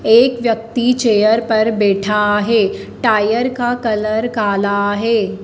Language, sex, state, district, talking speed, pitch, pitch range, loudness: Hindi, female, Madhya Pradesh, Dhar, 120 wpm, 220 Hz, 210-230 Hz, -15 LUFS